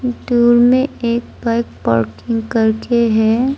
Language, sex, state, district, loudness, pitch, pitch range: Hindi, female, Arunachal Pradesh, Lower Dibang Valley, -15 LUFS, 235 Hz, 225-240 Hz